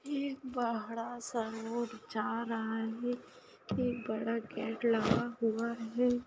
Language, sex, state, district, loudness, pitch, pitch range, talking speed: Hindi, female, Bihar, Sitamarhi, -36 LUFS, 230 Hz, 225-245 Hz, 135 wpm